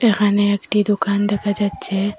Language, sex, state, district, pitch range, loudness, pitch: Bengali, female, Assam, Hailakandi, 200-205 Hz, -18 LUFS, 205 Hz